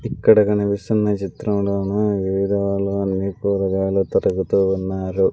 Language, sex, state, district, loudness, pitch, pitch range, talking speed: Telugu, male, Andhra Pradesh, Sri Satya Sai, -20 LUFS, 100 Hz, 95-100 Hz, 90 wpm